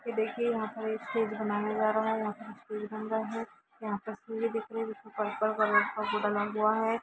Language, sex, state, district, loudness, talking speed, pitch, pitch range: Hindi, female, Jharkhand, Jamtara, -32 LUFS, 250 wpm, 220 Hz, 215-225 Hz